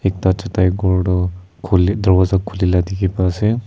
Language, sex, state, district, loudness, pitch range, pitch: Nagamese, male, Nagaland, Kohima, -17 LUFS, 90-95 Hz, 95 Hz